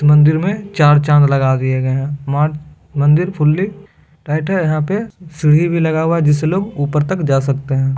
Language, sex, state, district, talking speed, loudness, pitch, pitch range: Hindi, male, Bihar, Begusarai, 210 wpm, -15 LUFS, 150 Hz, 145-170 Hz